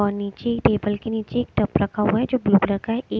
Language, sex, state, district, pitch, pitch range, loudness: Hindi, female, Maharashtra, Mumbai Suburban, 210 Hz, 200-235 Hz, -22 LUFS